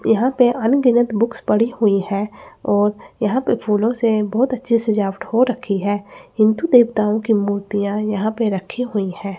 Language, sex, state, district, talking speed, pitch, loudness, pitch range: Hindi, female, Chandigarh, Chandigarh, 180 wpm, 215 Hz, -18 LUFS, 205-235 Hz